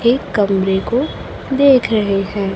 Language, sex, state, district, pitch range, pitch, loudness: Hindi, female, Chhattisgarh, Raipur, 195-255 Hz, 215 Hz, -16 LUFS